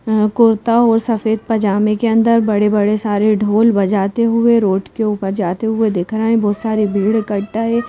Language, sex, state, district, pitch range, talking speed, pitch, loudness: Hindi, female, Madhya Pradesh, Bhopal, 205-225 Hz, 185 wpm, 215 Hz, -15 LUFS